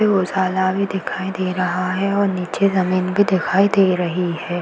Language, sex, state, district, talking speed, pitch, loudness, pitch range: Hindi, female, Uttar Pradesh, Varanasi, 205 wpm, 185 Hz, -19 LUFS, 185-195 Hz